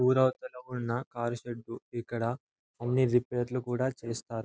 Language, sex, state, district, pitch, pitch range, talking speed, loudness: Telugu, male, Andhra Pradesh, Anantapur, 120 Hz, 115-125 Hz, 150 wpm, -32 LUFS